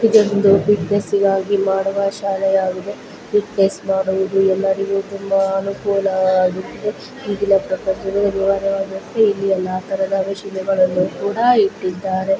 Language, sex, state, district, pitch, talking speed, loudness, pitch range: Kannada, female, Karnataka, Belgaum, 195 Hz, 80 wpm, -18 LUFS, 190-200 Hz